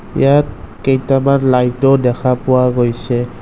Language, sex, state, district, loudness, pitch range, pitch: Assamese, male, Assam, Kamrup Metropolitan, -14 LUFS, 125-135 Hz, 130 Hz